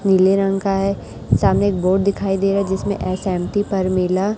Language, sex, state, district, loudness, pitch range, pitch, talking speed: Hindi, male, Chhattisgarh, Raipur, -18 LUFS, 185-200 Hz, 195 Hz, 180 wpm